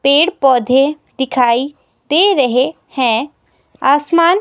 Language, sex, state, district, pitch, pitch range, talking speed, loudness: Hindi, female, Himachal Pradesh, Shimla, 275 Hz, 255-305 Hz, 95 wpm, -14 LUFS